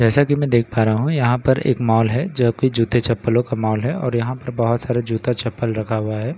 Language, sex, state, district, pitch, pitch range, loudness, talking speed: Hindi, male, Bihar, Katihar, 120 Hz, 115-130 Hz, -19 LUFS, 280 wpm